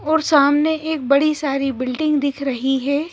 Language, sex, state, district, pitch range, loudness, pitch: Hindi, female, Madhya Pradesh, Bhopal, 275-310 Hz, -18 LUFS, 285 Hz